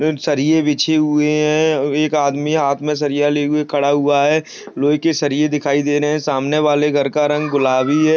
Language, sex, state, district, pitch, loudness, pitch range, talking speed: Hindi, male, Maharashtra, Solapur, 150 Hz, -16 LUFS, 145-150 Hz, 200 wpm